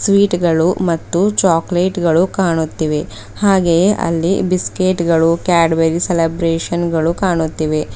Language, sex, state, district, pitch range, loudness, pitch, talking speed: Kannada, female, Karnataka, Bidar, 165-185 Hz, -15 LUFS, 170 Hz, 105 wpm